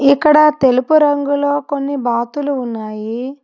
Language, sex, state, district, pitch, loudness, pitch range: Telugu, female, Telangana, Hyderabad, 280 Hz, -15 LUFS, 250-290 Hz